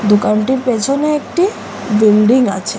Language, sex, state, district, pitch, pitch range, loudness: Bengali, female, Assam, Hailakandi, 235 Hz, 210-270 Hz, -13 LUFS